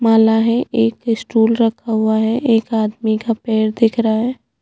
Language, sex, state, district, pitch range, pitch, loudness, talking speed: Hindi, female, Chhattisgarh, Jashpur, 220-230 Hz, 225 Hz, -16 LUFS, 180 wpm